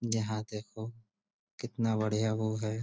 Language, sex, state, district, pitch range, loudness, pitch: Hindi, male, Uttar Pradesh, Budaun, 110-115 Hz, -34 LUFS, 110 Hz